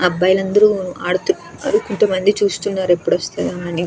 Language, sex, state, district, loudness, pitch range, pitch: Telugu, female, Andhra Pradesh, Krishna, -17 LUFS, 180-205 Hz, 190 Hz